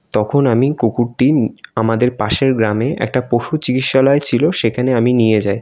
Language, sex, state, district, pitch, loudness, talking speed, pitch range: Bengali, male, West Bengal, North 24 Parganas, 125 Hz, -15 LUFS, 150 wpm, 115-135 Hz